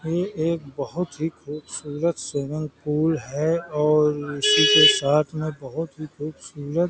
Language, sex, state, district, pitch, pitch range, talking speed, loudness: Hindi, male, Uttar Pradesh, Hamirpur, 150 Hz, 145-160 Hz, 150 wpm, -22 LUFS